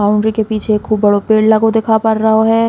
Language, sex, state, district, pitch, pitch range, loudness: Bundeli, female, Uttar Pradesh, Hamirpur, 220 Hz, 215-220 Hz, -13 LUFS